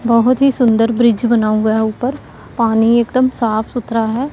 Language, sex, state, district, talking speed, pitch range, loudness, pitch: Hindi, female, Punjab, Pathankot, 180 wpm, 225-245 Hz, -14 LUFS, 230 Hz